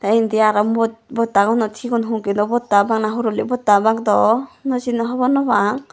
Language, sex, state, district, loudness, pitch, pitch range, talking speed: Chakma, female, Tripura, Dhalai, -18 LUFS, 225 Hz, 215-240 Hz, 180 wpm